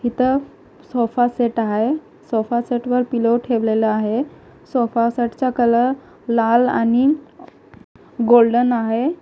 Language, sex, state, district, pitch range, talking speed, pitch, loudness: Marathi, female, Maharashtra, Gondia, 230-255 Hz, 100 wpm, 240 Hz, -18 LUFS